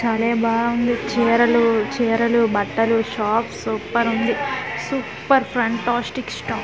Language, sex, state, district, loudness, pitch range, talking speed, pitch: Telugu, female, Andhra Pradesh, Manyam, -20 LUFS, 225-240 Hz, 90 wpm, 235 Hz